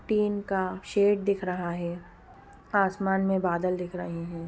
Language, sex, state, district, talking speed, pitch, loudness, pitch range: Hindi, female, Bihar, Gopalganj, 135 wpm, 185 Hz, -28 LUFS, 175-200 Hz